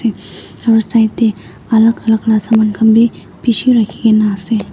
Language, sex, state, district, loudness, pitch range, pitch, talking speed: Nagamese, female, Nagaland, Dimapur, -12 LUFS, 220-230 Hz, 225 Hz, 150 wpm